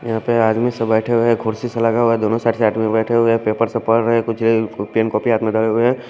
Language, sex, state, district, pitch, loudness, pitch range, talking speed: Hindi, male, Odisha, Khordha, 115 Hz, -17 LUFS, 110-115 Hz, 325 wpm